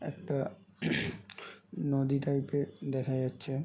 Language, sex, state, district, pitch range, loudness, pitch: Bengali, male, West Bengal, Jhargram, 135-140 Hz, -34 LUFS, 135 Hz